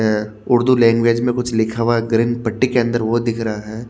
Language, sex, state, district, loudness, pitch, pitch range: Hindi, male, Haryana, Jhajjar, -17 LUFS, 115 Hz, 110-120 Hz